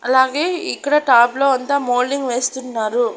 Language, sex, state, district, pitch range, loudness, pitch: Telugu, female, Andhra Pradesh, Annamaya, 245-280 Hz, -17 LUFS, 260 Hz